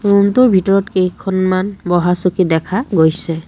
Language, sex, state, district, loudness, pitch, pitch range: Assamese, female, Assam, Kamrup Metropolitan, -14 LUFS, 185 Hz, 175-195 Hz